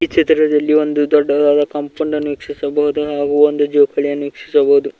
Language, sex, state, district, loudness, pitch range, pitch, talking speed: Kannada, male, Karnataka, Koppal, -15 LUFS, 145-155 Hz, 150 Hz, 120 wpm